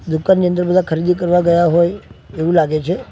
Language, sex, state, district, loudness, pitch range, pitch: Gujarati, male, Gujarat, Gandhinagar, -15 LUFS, 165-180 Hz, 175 Hz